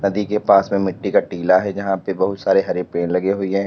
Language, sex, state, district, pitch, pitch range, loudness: Hindi, male, Uttar Pradesh, Lalitpur, 95 Hz, 95-100 Hz, -18 LUFS